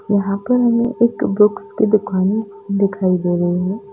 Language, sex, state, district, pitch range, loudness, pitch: Hindi, female, Bihar, Bhagalpur, 190-220 Hz, -17 LUFS, 205 Hz